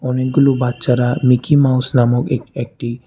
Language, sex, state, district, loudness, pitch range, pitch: Bengali, male, Tripura, West Tripura, -15 LUFS, 120-130 Hz, 125 Hz